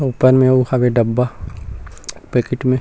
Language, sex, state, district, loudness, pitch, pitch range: Chhattisgarhi, male, Chhattisgarh, Rajnandgaon, -16 LUFS, 125 Hz, 100-130 Hz